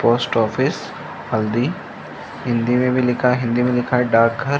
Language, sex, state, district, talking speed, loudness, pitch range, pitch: Hindi, male, Chhattisgarh, Rajnandgaon, 195 wpm, -19 LUFS, 115-125 Hz, 120 Hz